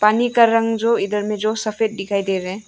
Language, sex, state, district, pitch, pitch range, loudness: Hindi, female, Arunachal Pradesh, Longding, 215 Hz, 200-225 Hz, -19 LUFS